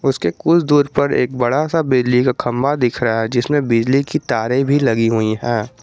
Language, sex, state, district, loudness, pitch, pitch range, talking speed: Hindi, male, Jharkhand, Garhwa, -16 LUFS, 125 Hz, 115-140 Hz, 215 wpm